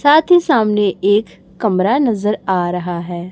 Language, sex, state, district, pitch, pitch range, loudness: Hindi, female, Chhattisgarh, Raipur, 205 Hz, 180-230 Hz, -15 LUFS